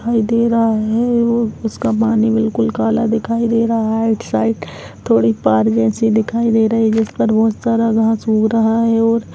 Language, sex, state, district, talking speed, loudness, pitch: Hindi, female, Chhattisgarh, Kabirdham, 200 wpm, -15 LUFS, 225 Hz